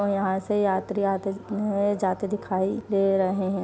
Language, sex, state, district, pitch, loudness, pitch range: Hindi, female, Uttar Pradesh, Varanasi, 195 Hz, -25 LUFS, 190-205 Hz